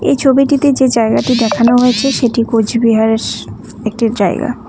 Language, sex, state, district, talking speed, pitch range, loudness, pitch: Bengali, female, West Bengal, Cooch Behar, 100 wpm, 225-265 Hz, -12 LUFS, 235 Hz